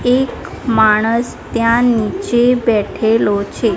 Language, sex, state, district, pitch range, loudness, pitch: Gujarati, female, Gujarat, Gandhinagar, 215-240 Hz, -15 LUFS, 230 Hz